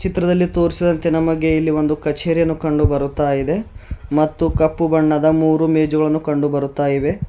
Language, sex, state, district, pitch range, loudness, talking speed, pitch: Kannada, male, Karnataka, Bidar, 150-165 Hz, -17 LUFS, 140 wpm, 155 Hz